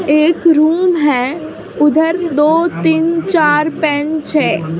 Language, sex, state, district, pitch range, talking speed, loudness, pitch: Hindi, female, Maharashtra, Mumbai Suburban, 295-330 Hz, 125 wpm, -13 LUFS, 315 Hz